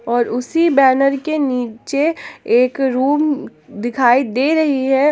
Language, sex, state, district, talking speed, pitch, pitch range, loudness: Hindi, female, Jharkhand, Palamu, 130 wpm, 270 Hz, 245-295 Hz, -16 LUFS